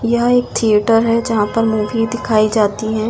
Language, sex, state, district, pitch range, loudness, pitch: Hindi, female, Delhi, New Delhi, 215-230 Hz, -15 LUFS, 225 Hz